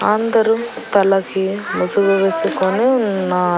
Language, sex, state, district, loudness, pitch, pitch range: Telugu, female, Andhra Pradesh, Annamaya, -16 LUFS, 200 Hz, 190-225 Hz